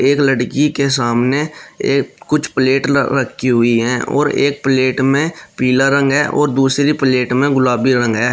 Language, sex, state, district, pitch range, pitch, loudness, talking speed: Hindi, male, Uttar Pradesh, Shamli, 125-140 Hz, 135 Hz, -15 LUFS, 180 wpm